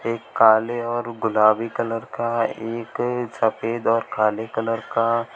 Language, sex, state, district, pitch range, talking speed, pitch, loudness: Hindi, male, Uttar Pradesh, Shamli, 110-115 Hz, 125 wpm, 115 Hz, -22 LUFS